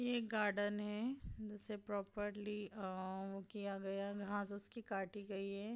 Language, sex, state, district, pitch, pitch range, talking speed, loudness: Hindi, female, Bihar, Madhepura, 205 Hz, 200-210 Hz, 155 wpm, -44 LUFS